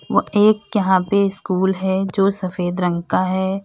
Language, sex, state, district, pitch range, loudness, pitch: Hindi, female, Uttar Pradesh, Lalitpur, 185-200 Hz, -19 LUFS, 190 Hz